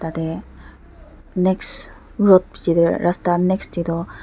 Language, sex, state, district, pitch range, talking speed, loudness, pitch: Nagamese, female, Nagaland, Dimapur, 160-185 Hz, 115 wpm, -19 LUFS, 170 Hz